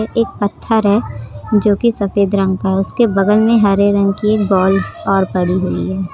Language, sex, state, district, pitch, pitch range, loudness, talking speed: Hindi, female, Uttar Pradesh, Lucknow, 200 Hz, 190-210 Hz, -14 LUFS, 195 wpm